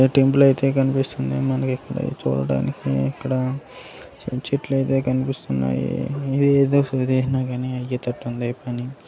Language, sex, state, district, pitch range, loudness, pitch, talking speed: Telugu, male, Karnataka, Gulbarga, 120-135 Hz, -22 LUFS, 130 Hz, 110 wpm